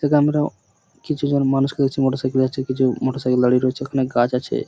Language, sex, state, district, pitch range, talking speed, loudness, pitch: Bengali, male, West Bengal, Purulia, 130-140 Hz, 205 wpm, -20 LUFS, 130 Hz